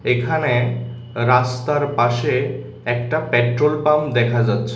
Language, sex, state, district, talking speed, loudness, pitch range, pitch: Bengali, male, Tripura, West Tripura, 100 wpm, -19 LUFS, 120-145 Hz, 120 Hz